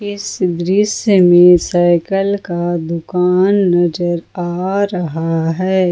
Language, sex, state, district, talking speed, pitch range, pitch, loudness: Hindi, female, Jharkhand, Ranchi, 100 wpm, 175-195 Hz, 180 Hz, -14 LUFS